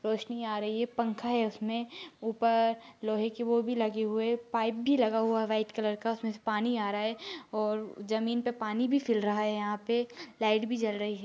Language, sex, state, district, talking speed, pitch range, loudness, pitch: Hindi, female, Maharashtra, Dhule, 225 wpm, 215-235 Hz, -31 LUFS, 225 Hz